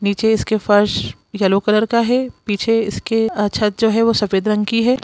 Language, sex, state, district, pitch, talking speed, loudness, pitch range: Hindi, female, Bihar, Jamui, 215 Hz, 205 wpm, -17 LUFS, 205-230 Hz